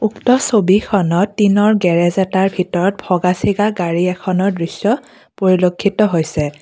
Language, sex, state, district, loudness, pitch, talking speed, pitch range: Assamese, female, Assam, Kamrup Metropolitan, -15 LUFS, 190 Hz, 120 wpm, 180-205 Hz